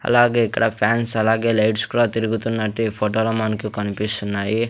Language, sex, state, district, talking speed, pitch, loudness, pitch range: Telugu, male, Andhra Pradesh, Sri Satya Sai, 155 wpm, 110 Hz, -20 LUFS, 110-115 Hz